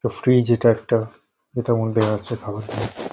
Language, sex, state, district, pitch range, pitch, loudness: Bengali, male, West Bengal, North 24 Parganas, 110-120 Hz, 115 Hz, -21 LUFS